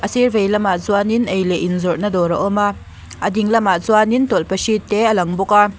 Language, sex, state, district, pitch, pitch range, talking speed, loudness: Mizo, female, Mizoram, Aizawl, 205 Hz, 190-215 Hz, 240 wpm, -16 LUFS